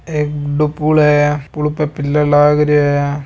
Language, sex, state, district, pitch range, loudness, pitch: Marwari, male, Rajasthan, Nagaur, 145-150 Hz, -14 LUFS, 150 Hz